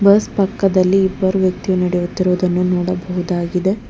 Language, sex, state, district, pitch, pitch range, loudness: Kannada, female, Karnataka, Bangalore, 185 Hz, 180-190 Hz, -17 LUFS